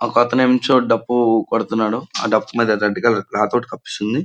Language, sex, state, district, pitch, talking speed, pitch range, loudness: Telugu, male, Andhra Pradesh, Srikakulam, 115 Hz, 170 wpm, 110-120 Hz, -18 LUFS